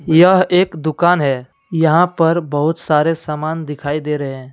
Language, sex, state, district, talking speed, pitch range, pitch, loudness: Hindi, male, Jharkhand, Deoghar, 170 wpm, 150-175 Hz, 160 Hz, -16 LUFS